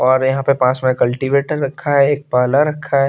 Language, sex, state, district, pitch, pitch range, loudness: Hindi, male, Bihar, West Champaran, 135 Hz, 130-145 Hz, -16 LUFS